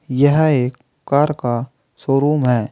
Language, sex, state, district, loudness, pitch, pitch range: Hindi, male, Uttar Pradesh, Saharanpur, -17 LUFS, 135 Hz, 125-145 Hz